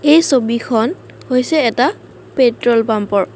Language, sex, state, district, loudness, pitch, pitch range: Assamese, female, Assam, Kamrup Metropolitan, -15 LUFS, 245 Hz, 225-275 Hz